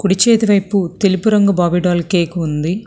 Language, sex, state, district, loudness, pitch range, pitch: Telugu, female, Telangana, Hyderabad, -14 LUFS, 175-205 Hz, 185 Hz